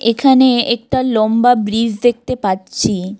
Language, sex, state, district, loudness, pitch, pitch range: Bengali, female, West Bengal, Alipurduar, -14 LUFS, 230 Hz, 215-250 Hz